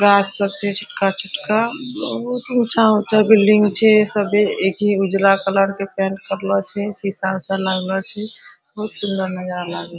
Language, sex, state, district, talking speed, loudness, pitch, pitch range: Hindi, female, Bihar, Araria, 150 wpm, -18 LUFS, 200 Hz, 195-215 Hz